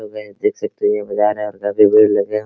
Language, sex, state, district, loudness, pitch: Hindi, male, Bihar, Araria, -16 LUFS, 105 Hz